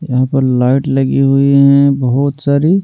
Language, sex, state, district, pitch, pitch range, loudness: Hindi, male, Delhi, New Delhi, 135 Hz, 135-140 Hz, -11 LUFS